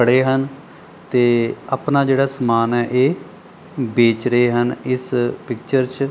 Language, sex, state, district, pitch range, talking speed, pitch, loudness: Punjabi, male, Punjab, Pathankot, 120-135 Hz, 140 wpm, 130 Hz, -18 LUFS